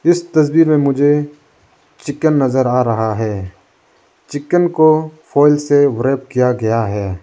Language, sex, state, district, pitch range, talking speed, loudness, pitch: Hindi, male, Arunachal Pradesh, Lower Dibang Valley, 120-155 Hz, 135 wpm, -14 LUFS, 145 Hz